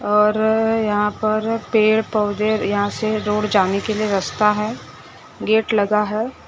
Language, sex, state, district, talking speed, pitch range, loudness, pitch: Hindi, female, Maharashtra, Gondia, 150 wpm, 210-220 Hz, -19 LUFS, 215 Hz